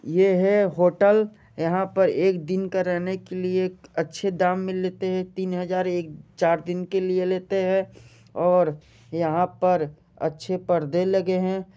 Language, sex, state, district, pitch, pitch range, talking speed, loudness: Hindi, male, Jharkhand, Jamtara, 185 Hz, 175-190 Hz, 165 wpm, -24 LUFS